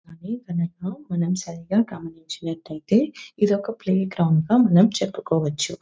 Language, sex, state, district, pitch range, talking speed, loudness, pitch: Telugu, female, Telangana, Nalgonda, 165-210 Hz, 115 wpm, -23 LUFS, 180 Hz